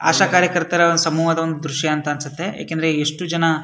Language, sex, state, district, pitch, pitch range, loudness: Kannada, male, Karnataka, Shimoga, 165 Hz, 155-170 Hz, -19 LUFS